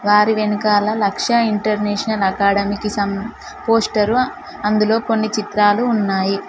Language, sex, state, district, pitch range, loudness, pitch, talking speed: Telugu, female, Telangana, Mahabubabad, 205-220 Hz, -17 LUFS, 210 Hz, 100 wpm